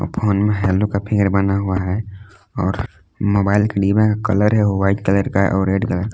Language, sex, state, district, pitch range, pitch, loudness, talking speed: Hindi, male, Jharkhand, Palamu, 100-105 Hz, 100 Hz, -18 LUFS, 215 wpm